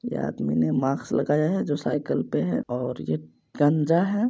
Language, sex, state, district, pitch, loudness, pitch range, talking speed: Maithili, male, Bihar, Supaul, 140 Hz, -25 LUFS, 110-155 Hz, 195 wpm